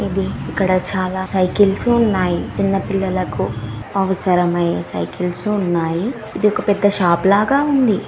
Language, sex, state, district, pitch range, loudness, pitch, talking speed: Telugu, female, Andhra Pradesh, Srikakulam, 180-205 Hz, -18 LUFS, 190 Hz, 95 wpm